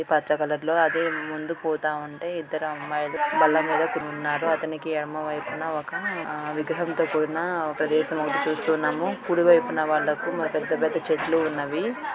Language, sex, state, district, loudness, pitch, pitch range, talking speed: Telugu, female, Telangana, Karimnagar, -25 LUFS, 155 Hz, 155-165 Hz, 130 wpm